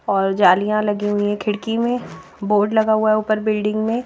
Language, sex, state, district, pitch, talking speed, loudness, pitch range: Hindi, female, Madhya Pradesh, Bhopal, 210 Hz, 205 wpm, -18 LUFS, 205-220 Hz